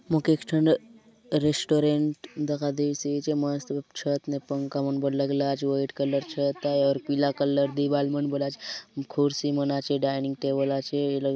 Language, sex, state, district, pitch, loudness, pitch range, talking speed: Halbi, male, Chhattisgarh, Bastar, 140 Hz, -27 LUFS, 140-145 Hz, 175 wpm